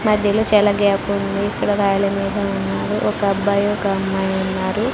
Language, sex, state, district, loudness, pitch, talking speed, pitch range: Telugu, female, Andhra Pradesh, Sri Satya Sai, -18 LUFS, 200 Hz, 110 wpm, 195-205 Hz